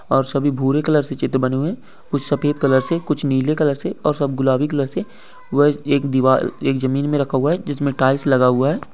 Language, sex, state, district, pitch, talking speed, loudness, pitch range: Hindi, male, Bihar, Jamui, 140 Hz, 240 wpm, -19 LUFS, 135-150 Hz